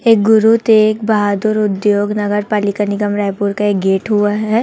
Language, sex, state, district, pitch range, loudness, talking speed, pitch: Hindi, female, Chhattisgarh, Raipur, 205-215 Hz, -14 LUFS, 170 wpm, 210 Hz